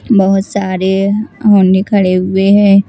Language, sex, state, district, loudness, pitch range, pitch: Hindi, female, Bihar, West Champaran, -11 LUFS, 190-205 Hz, 195 Hz